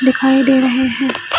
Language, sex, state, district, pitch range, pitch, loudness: Hindi, female, Chhattisgarh, Bilaspur, 255-265 Hz, 260 Hz, -14 LUFS